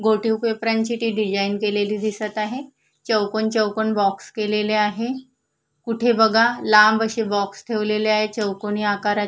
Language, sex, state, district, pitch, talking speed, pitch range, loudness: Marathi, female, Maharashtra, Solapur, 215 Hz, 150 wpm, 210-225 Hz, -20 LUFS